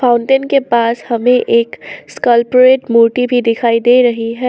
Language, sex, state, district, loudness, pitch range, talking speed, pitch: Hindi, female, Assam, Sonitpur, -12 LUFS, 235-250 Hz, 160 wpm, 240 Hz